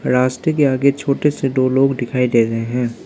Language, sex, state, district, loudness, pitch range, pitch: Hindi, male, Arunachal Pradesh, Lower Dibang Valley, -17 LUFS, 125-140 Hz, 130 Hz